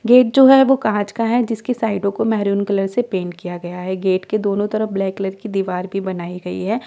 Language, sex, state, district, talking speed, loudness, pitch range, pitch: Hindi, female, Delhi, New Delhi, 255 wpm, -18 LUFS, 190-225 Hz, 200 Hz